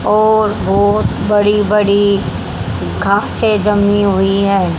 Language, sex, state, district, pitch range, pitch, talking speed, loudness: Hindi, female, Haryana, Jhajjar, 190-210 Hz, 200 Hz, 100 wpm, -13 LUFS